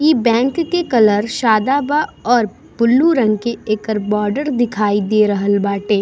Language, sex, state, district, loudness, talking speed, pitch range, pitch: Bhojpuri, female, Bihar, East Champaran, -16 LUFS, 160 wpm, 210-265 Hz, 230 Hz